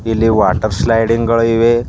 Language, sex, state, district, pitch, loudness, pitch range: Kannada, male, Karnataka, Bidar, 115 Hz, -13 LUFS, 110-115 Hz